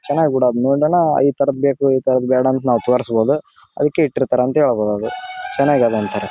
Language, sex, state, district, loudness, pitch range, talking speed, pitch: Kannada, male, Karnataka, Raichur, -17 LUFS, 125-145 Hz, 200 wpm, 130 Hz